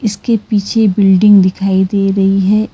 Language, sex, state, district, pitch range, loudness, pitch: Hindi, female, Karnataka, Bangalore, 195-215 Hz, -11 LUFS, 200 Hz